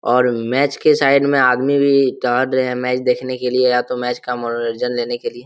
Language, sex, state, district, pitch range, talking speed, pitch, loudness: Hindi, male, Jharkhand, Jamtara, 125-135 Hz, 240 wpm, 125 Hz, -17 LUFS